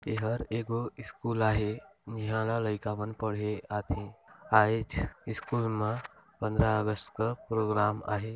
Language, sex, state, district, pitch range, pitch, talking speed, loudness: Hindi, male, Chhattisgarh, Balrampur, 105-115 Hz, 110 Hz, 135 wpm, -31 LUFS